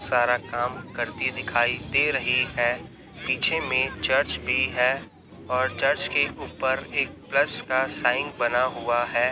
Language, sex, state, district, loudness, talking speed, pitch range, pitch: Hindi, male, Chhattisgarh, Raipur, -21 LUFS, 150 wpm, 120-130 Hz, 125 Hz